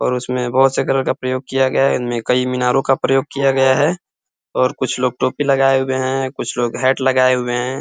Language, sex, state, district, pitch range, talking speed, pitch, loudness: Hindi, male, Uttar Pradesh, Ghazipur, 125-135 Hz, 240 wpm, 130 Hz, -17 LUFS